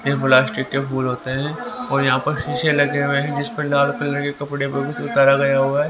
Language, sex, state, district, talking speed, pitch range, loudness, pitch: Hindi, male, Haryana, Rohtak, 255 wpm, 135-145 Hz, -19 LUFS, 140 Hz